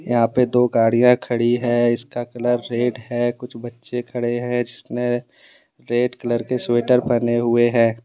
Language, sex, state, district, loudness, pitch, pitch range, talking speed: Hindi, male, Jharkhand, Deoghar, -20 LUFS, 120 Hz, 120-125 Hz, 165 wpm